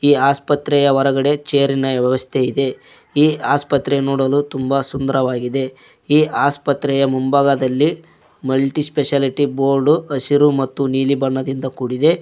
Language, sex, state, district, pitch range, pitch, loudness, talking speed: Kannada, male, Karnataka, Koppal, 135-145 Hz, 140 Hz, -17 LUFS, 115 wpm